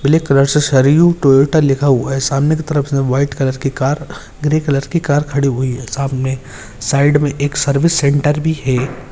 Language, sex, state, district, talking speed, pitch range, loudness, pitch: Hindi, male, Maharashtra, Aurangabad, 195 wpm, 135-150 Hz, -14 LUFS, 140 Hz